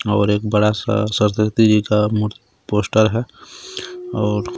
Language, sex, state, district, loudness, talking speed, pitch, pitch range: Hindi, male, Jharkhand, Garhwa, -18 LUFS, 130 wpm, 105 Hz, 105-120 Hz